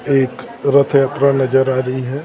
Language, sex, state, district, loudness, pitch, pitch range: Hindi, male, Maharashtra, Gondia, -15 LUFS, 135 Hz, 130-140 Hz